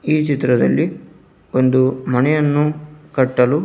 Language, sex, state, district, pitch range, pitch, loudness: Kannada, male, Karnataka, Dharwad, 130-150 Hz, 145 Hz, -17 LUFS